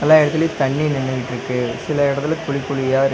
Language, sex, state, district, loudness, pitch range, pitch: Tamil, male, Tamil Nadu, Nilgiris, -19 LUFS, 130-150 Hz, 140 Hz